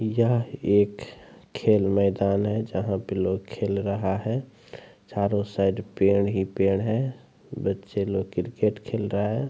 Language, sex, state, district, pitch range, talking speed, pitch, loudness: Hindi, male, Bihar, Araria, 95-110 Hz, 160 wpm, 100 Hz, -25 LUFS